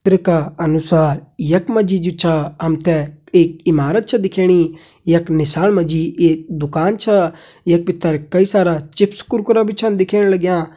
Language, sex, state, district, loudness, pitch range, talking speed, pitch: Hindi, male, Uttarakhand, Tehri Garhwal, -16 LUFS, 160-195 Hz, 175 wpm, 170 Hz